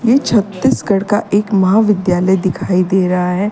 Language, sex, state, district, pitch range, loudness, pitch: Hindi, female, Uttar Pradesh, Lalitpur, 185-210 Hz, -14 LUFS, 195 Hz